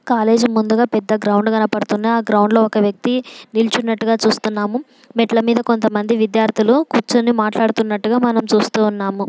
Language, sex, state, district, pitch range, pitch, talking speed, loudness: Telugu, female, Andhra Pradesh, Srikakulam, 215-235 Hz, 225 Hz, 130 wpm, -16 LUFS